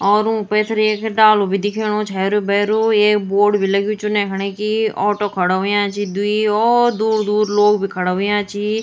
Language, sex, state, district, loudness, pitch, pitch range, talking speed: Garhwali, female, Uttarakhand, Tehri Garhwal, -17 LUFS, 210 Hz, 200-215 Hz, 210 wpm